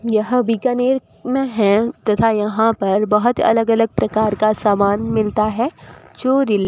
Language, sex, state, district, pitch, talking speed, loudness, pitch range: Hindi, female, Rajasthan, Bikaner, 220 Hz, 150 wpm, -17 LUFS, 210-240 Hz